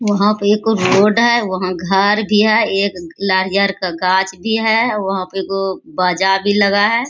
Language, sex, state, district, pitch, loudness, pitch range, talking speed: Hindi, female, Bihar, Bhagalpur, 200 Hz, -15 LUFS, 190-210 Hz, 185 wpm